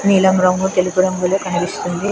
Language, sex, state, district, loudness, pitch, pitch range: Telugu, female, Andhra Pradesh, Krishna, -16 LUFS, 185 Hz, 180-190 Hz